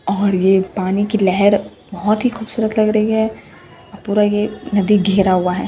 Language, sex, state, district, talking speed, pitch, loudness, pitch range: Hindi, female, Bihar, Katihar, 190 wpm, 205 Hz, -16 LUFS, 195-215 Hz